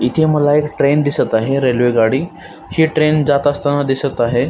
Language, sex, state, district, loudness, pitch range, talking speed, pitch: Marathi, male, Maharashtra, Solapur, -15 LUFS, 130-150 Hz, 185 wpm, 145 Hz